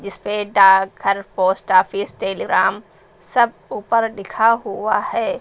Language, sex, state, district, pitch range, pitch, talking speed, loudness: Hindi, female, Uttar Pradesh, Lucknow, 190-220 Hz, 200 Hz, 120 wpm, -18 LUFS